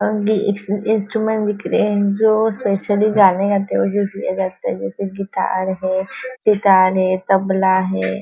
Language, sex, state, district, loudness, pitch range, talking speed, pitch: Hindi, female, Maharashtra, Nagpur, -17 LUFS, 185-210 Hz, 140 wpm, 195 Hz